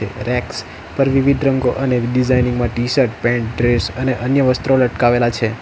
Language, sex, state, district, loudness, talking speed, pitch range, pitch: Gujarati, male, Gujarat, Valsad, -16 LUFS, 160 wpm, 120-130 Hz, 125 Hz